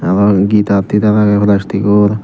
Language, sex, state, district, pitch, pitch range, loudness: Chakma, male, Tripura, Dhalai, 105 Hz, 100-105 Hz, -11 LUFS